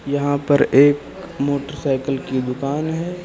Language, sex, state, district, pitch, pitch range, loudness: Hindi, male, Uttar Pradesh, Lucknow, 140 Hz, 135-145 Hz, -19 LUFS